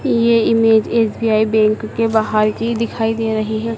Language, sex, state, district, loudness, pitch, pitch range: Hindi, male, Madhya Pradesh, Dhar, -16 LUFS, 225 Hz, 220-230 Hz